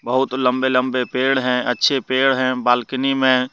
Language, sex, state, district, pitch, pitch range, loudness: Hindi, male, Jharkhand, Deoghar, 130 Hz, 125-130 Hz, -18 LUFS